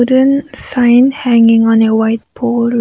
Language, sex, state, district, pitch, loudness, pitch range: English, female, Nagaland, Kohima, 240 Hz, -11 LUFS, 230-260 Hz